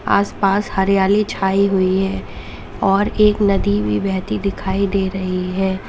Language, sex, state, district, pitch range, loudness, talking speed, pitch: Hindi, female, Uttar Pradesh, Lalitpur, 185-200 Hz, -18 LUFS, 155 wpm, 195 Hz